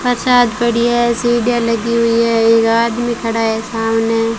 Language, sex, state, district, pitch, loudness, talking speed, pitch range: Hindi, female, Rajasthan, Bikaner, 230 Hz, -14 LUFS, 165 wpm, 225-240 Hz